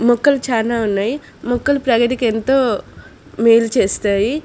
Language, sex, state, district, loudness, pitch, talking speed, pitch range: Telugu, female, Andhra Pradesh, Srikakulam, -16 LUFS, 235 Hz, 110 wpm, 225-260 Hz